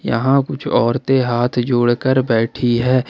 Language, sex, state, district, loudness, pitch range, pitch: Hindi, male, Jharkhand, Ranchi, -16 LUFS, 120-130 Hz, 125 Hz